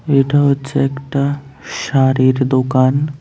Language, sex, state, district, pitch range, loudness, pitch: Bengali, male, Tripura, West Tripura, 130-140 Hz, -15 LUFS, 135 Hz